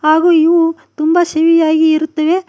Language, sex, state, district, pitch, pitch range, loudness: Kannada, female, Karnataka, Koppal, 320 Hz, 315-335 Hz, -12 LUFS